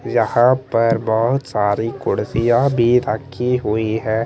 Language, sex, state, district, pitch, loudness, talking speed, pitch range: Hindi, male, Chandigarh, Chandigarh, 115 Hz, -18 LUFS, 125 wpm, 110-125 Hz